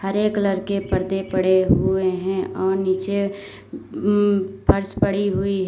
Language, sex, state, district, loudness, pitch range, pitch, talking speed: Hindi, female, Uttar Pradesh, Lalitpur, -21 LUFS, 190-200 Hz, 195 Hz, 135 wpm